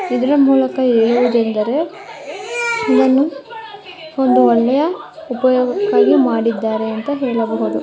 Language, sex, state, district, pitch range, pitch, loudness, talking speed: Kannada, female, Karnataka, Mysore, 235-325 Hz, 265 Hz, -15 LUFS, 90 wpm